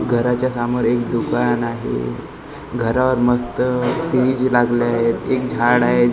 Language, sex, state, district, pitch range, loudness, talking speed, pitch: Marathi, male, Maharashtra, Gondia, 120-125 Hz, -18 LUFS, 125 wpm, 120 Hz